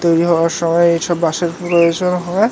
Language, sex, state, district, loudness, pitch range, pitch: Bengali, male, West Bengal, North 24 Parganas, -15 LUFS, 170-175 Hz, 170 Hz